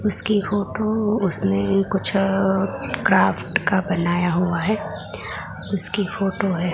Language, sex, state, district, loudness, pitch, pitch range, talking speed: Hindi, female, Gujarat, Gandhinagar, -19 LUFS, 195 Hz, 180-205 Hz, 105 wpm